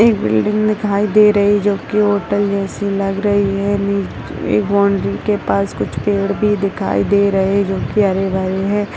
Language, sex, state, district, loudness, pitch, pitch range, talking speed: Hindi, male, Bihar, Bhagalpur, -16 LUFS, 200 Hz, 195-205 Hz, 195 wpm